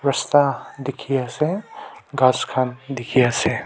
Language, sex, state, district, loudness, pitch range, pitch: Nagamese, male, Nagaland, Kohima, -21 LUFS, 130-145 Hz, 135 Hz